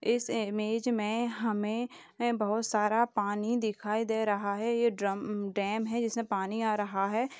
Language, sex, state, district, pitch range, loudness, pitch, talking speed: Hindi, female, Uttar Pradesh, Jalaun, 210-235 Hz, -31 LUFS, 220 Hz, 170 wpm